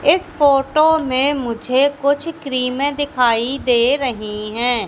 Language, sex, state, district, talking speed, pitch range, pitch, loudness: Hindi, female, Madhya Pradesh, Katni, 125 wpm, 245-285 Hz, 265 Hz, -17 LUFS